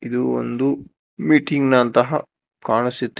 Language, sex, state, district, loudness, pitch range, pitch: Kannada, male, Karnataka, Bangalore, -19 LUFS, 120-140 Hz, 125 Hz